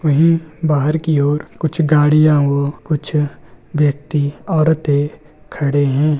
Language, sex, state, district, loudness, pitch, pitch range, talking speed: Hindi, male, Bihar, Darbhanga, -16 LUFS, 150 Hz, 145-155 Hz, 115 wpm